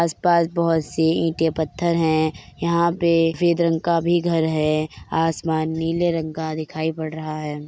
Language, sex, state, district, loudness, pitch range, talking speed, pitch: Hindi, female, Bihar, Begusarai, -21 LUFS, 155-170 Hz, 170 wpm, 165 Hz